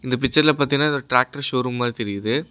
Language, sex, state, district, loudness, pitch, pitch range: Tamil, male, Tamil Nadu, Namakkal, -20 LUFS, 130 Hz, 125-140 Hz